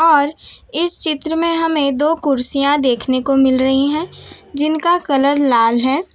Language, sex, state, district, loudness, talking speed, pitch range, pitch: Hindi, female, Gujarat, Valsad, -16 LUFS, 155 wpm, 270-320 Hz, 290 Hz